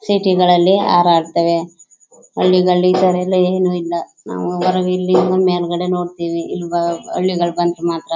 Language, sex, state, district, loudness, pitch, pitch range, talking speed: Kannada, female, Karnataka, Chamarajanagar, -16 LUFS, 175 Hz, 170-185 Hz, 140 wpm